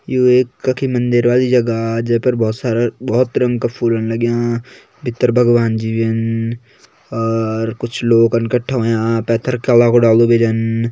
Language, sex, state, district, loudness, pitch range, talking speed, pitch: Kumaoni, male, Uttarakhand, Tehri Garhwal, -15 LUFS, 115-125 Hz, 165 wpm, 120 Hz